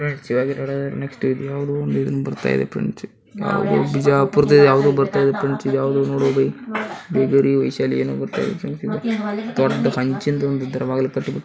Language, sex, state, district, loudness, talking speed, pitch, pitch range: Kannada, male, Karnataka, Bijapur, -20 LUFS, 100 wpm, 135 Hz, 130-145 Hz